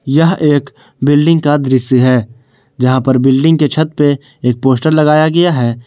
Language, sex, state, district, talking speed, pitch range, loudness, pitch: Hindi, male, Jharkhand, Garhwa, 175 wpm, 130-155 Hz, -11 LUFS, 140 Hz